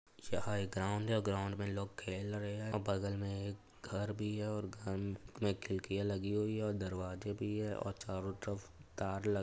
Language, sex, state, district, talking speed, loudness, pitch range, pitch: Hindi, male, Uttar Pradesh, Etah, 225 wpm, -40 LUFS, 95-105 Hz, 100 Hz